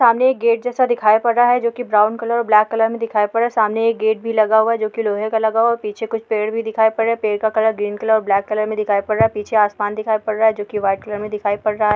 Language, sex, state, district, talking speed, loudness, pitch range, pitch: Hindi, female, Bihar, Bhagalpur, 335 wpm, -17 LUFS, 210-230 Hz, 220 Hz